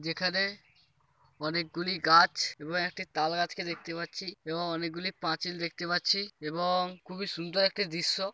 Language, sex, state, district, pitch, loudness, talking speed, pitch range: Bengali, male, West Bengal, Paschim Medinipur, 175 Hz, -30 LUFS, 135 wpm, 165-185 Hz